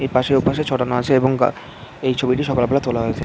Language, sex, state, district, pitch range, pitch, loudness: Bengali, male, West Bengal, Jhargram, 125-135 Hz, 130 Hz, -19 LUFS